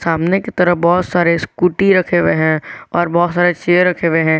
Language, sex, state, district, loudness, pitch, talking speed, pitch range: Hindi, male, Jharkhand, Garhwa, -14 LUFS, 175 Hz, 220 wpm, 170-180 Hz